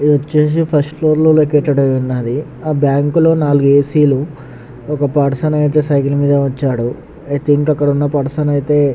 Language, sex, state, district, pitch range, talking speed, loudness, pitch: Telugu, male, Telangana, Nalgonda, 140-150 Hz, 165 wpm, -14 LUFS, 145 Hz